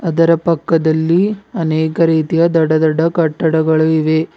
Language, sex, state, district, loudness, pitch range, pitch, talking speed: Kannada, male, Karnataka, Bidar, -14 LUFS, 160-170 Hz, 160 Hz, 110 wpm